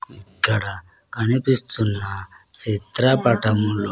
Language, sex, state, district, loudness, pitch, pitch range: Telugu, male, Andhra Pradesh, Sri Satya Sai, -21 LUFS, 110 Hz, 100-120 Hz